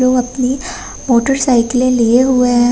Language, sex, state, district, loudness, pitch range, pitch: Hindi, female, Uttar Pradesh, Hamirpur, -13 LUFS, 245-260 Hz, 250 Hz